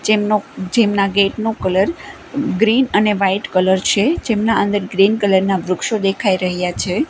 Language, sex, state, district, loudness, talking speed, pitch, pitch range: Gujarati, female, Gujarat, Gandhinagar, -16 LUFS, 160 wpm, 200 Hz, 190-220 Hz